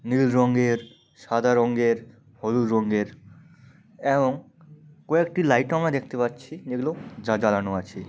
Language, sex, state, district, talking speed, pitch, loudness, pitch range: Bengali, male, West Bengal, Malda, 110 wpm, 125 Hz, -24 LUFS, 115-150 Hz